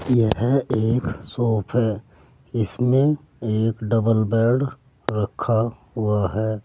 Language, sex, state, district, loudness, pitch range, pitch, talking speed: Hindi, male, Uttar Pradesh, Saharanpur, -22 LUFS, 110-125 Hz, 115 Hz, 100 wpm